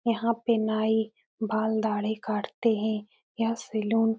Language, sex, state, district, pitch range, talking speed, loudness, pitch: Hindi, female, Uttar Pradesh, Etah, 215-225 Hz, 145 wpm, -28 LUFS, 220 Hz